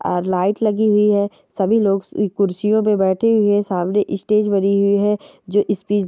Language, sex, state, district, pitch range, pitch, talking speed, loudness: Hindi, female, Bihar, Darbhanga, 195-210 Hz, 205 Hz, 195 wpm, -18 LUFS